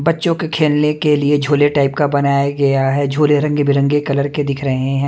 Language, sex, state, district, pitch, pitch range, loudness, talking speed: Hindi, male, Haryana, Charkhi Dadri, 145 Hz, 140-150 Hz, -15 LUFS, 235 wpm